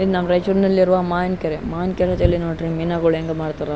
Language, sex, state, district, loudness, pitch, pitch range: Kannada, male, Karnataka, Raichur, -19 LUFS, 175 Hz, 165-185 Hz